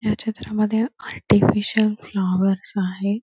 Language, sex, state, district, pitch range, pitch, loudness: Marathi, female, Karnataka, Belgaum, 195-220 Hz, 210 Hz, -21 LUFS